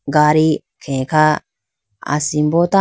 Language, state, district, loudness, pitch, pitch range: Idu Mishmi, Arunachal Pradesh, Lower Dibang Valley, -16 LUFS, 150 Hz, 135-155 Hz